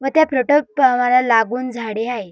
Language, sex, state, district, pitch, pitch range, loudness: Marathi, female, Maharashtra, Dhule, 250 Hz, 235-270 Hz, -17 LUFS